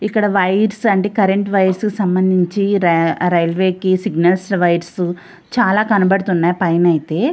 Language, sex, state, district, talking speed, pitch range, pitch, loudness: Telugu, female, Andhra Pradesh, Visakhapatnam, 105 wpm, 175-200 Hz, 185 Hz, -15 LUFS